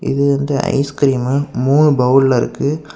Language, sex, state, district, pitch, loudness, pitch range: Tamil, male, Tamil Nadu, Kanyakumari, 140 Hz, -15 LUFS, 135-145 Hz